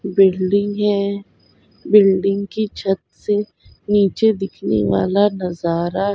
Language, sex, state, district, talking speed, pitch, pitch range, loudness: Hindi, female, Bihar, Kishanganj, 105 wpm, 200 Hz, 185-205 Hz, -18 LUFS